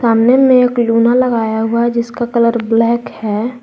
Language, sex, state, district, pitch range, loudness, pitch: Hindi, female, Jharkhand, Garhwa, 230-245 Hz, -13 LUFS, 235 Hz